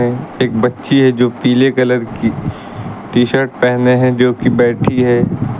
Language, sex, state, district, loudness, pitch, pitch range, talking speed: Hindi, male, Uttar Pradesh, Lucknow, -13 LUFS, 125 Hz, 120-130 Hz, 150 wpm